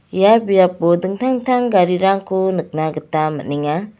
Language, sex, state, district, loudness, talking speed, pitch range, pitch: Garo, female, Meghalaya, West Garo Hills, -16 LUFS, 120 wpm, 155-200 Hz, 185 Hz